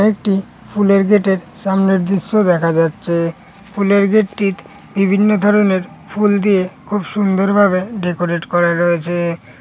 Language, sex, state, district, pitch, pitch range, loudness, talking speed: Bengali, female, West Bengal, North 24 Parganas, 195 Hz, 175-205 Hz, -15 LUFS, 130 wpm